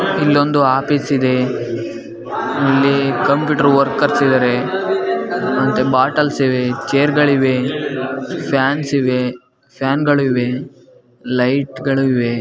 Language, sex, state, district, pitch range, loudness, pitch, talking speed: Kannada, female, Karnataka, Bijapur, 130-145 Hz, -16 LUFS, 135 Hz, 85 wpm